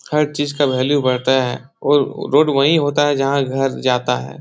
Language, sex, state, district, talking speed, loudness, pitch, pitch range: Hindi, male, Bihar, Jahanabad, 205 wpm, -17 LUFS, 140 Hz, 130-145 Hz